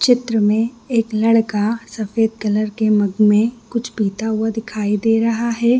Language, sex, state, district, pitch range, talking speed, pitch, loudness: Hindi, female, Chhattisgarh, Bilaspur, 215-230 Hz, 165 wpm, 225 Hz, -18 LUFS